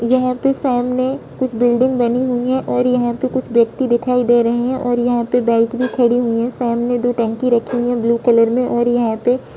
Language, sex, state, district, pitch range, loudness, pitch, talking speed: Hindi, female, Bihar, Saharsa, 235-255 Hz, -16 LUFS, 245 Hz, 230 wpm